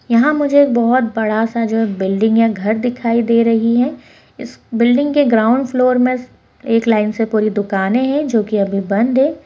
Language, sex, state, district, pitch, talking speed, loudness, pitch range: Hindi, female, Bihar, Begusarai, 230 Hz, 195 wpm, -15 LUFS, 220-255 Hz